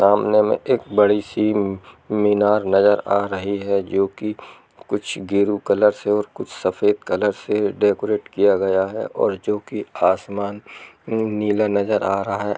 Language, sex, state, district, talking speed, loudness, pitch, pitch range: Hindi, male, Jharkhand, Jamtara, 160 wpm, -20 LUFS, 105 Hz, 100-105 Hz